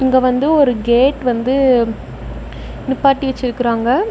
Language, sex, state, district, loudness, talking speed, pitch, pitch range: Tamil, female, Tamil Nadu, Namakkal, -15 LUFS, 100 wpm, 260 Hz, 245-270 Hz